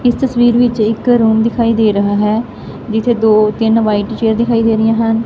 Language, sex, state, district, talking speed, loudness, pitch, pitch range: Punjabi, female, Punjab, Fazilka, 205 wpm, -13 LUFS, 225 Hz, 220-235 Hz